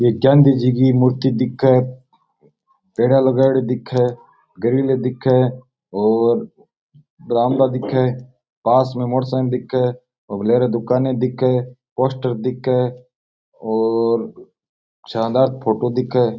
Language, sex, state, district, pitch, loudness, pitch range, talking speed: Rajasthani, male, Rajasthan, Nagaur, 125 Hz, -18 LUFS, 125-130 Hz, 100 wpm